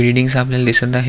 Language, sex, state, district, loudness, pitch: Marathi, male, Maharashtra, Aurangabad, -14 LUFS, 125 Hz